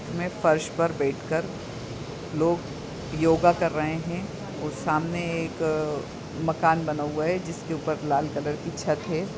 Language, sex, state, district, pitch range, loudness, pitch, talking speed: Hindi, male, Bihar, Muzaffarpur, 150-170 Hz, -27 LUFS, 160 Hz, 155 wpm